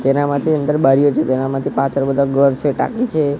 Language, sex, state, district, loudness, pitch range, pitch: Gujarati, male, Gujarat, Gandhinagar, -16 LUFS, 135-145 Hz, 140 Hz